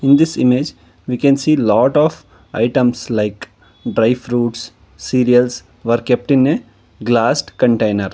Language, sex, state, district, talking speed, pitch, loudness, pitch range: English, male, Karnataka, Bangalore, 140 wpm, 120 Hz, -15 LUFS, 115-130 Hz